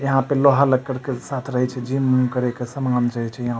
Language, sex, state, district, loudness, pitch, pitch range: Maithili, male, Bihar, Supaul, -21 LUFS, 130 Hz, 125-135 Hz